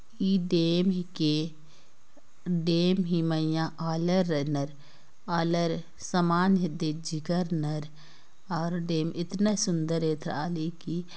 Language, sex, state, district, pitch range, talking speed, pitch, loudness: Sadri, female, Chhattisgarh, Jashpur, 160-175 Hz, 100 wpm, 170 Hz, -28 LUFS